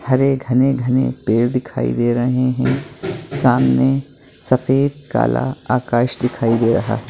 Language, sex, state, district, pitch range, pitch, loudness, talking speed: Hindi, male, Chhattisgarh, Raigarh, 120-130 Hz, 125 Hz, -17 LUFS, 145 wpm